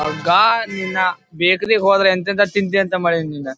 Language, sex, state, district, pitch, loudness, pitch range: Kannada, male, Karnataka, Dharwad, 185 Hz, -16 LUFS, 170-200 Hz